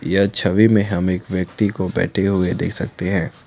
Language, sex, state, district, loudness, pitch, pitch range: Hindi, male, Assam, Kamrup Metropolitan, -19 LUFS, 95 Hz, 90-100 Hz